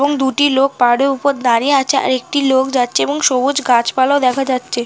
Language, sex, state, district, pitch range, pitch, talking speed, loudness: Bengali, female, West Bengal, North 24 Parganas, 250-280 Hz, 265 Hz, 210 wpm, -14 LUFS